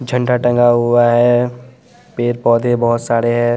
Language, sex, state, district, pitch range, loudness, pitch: Hindi, male, Bihar, West Champaran, 120-125 Hz, -14 LUFS, 120 Hz